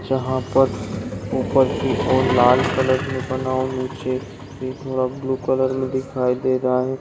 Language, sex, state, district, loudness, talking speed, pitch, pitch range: Hindi, male, Chhattisgarh, Bilaspur, -21 LUFS, 135 wpm, 130 Hz, 125-130 Hz